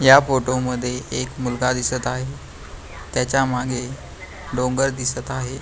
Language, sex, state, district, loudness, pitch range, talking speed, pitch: Marathi, male, Maharashtra, Pune, -22 LUFS, 125-130 Hz, 130 wpm, 125 Hz